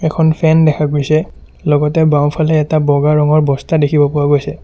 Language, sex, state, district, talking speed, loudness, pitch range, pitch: Assamese, male, Assam, Sonitpur, 170 wpm, -13 LUFS, 145-155 Hz, 150 Hz